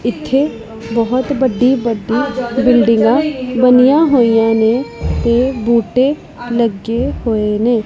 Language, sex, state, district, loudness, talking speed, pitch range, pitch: Punjabi, female, Punjab, Pathankot, -14 LUFS, 100 wpm, 230-260 Hz, 240 Hz